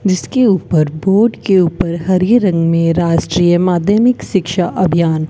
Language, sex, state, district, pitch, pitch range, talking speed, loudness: Hindi, female, Rajasthan, Bikaner, 180 Hz, 170-195 Hz, 135 wpm, -13 LUFS